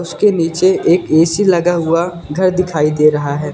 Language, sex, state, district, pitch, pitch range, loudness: Hindi, male, Uttar Pradesh, Lucknow, 170 Hz, 155-185 Hz, -14 LUFS